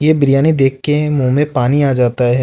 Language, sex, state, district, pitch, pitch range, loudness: Hindi, male, Rajasthan, Jaipur, 140 Hz, 130-150 Hz, -13 LUFS